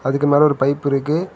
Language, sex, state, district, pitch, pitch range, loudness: Tamil, male, Tamil Nadu, Kanyakumari, 145 Hz, 140-150 Hz, -17 LUFS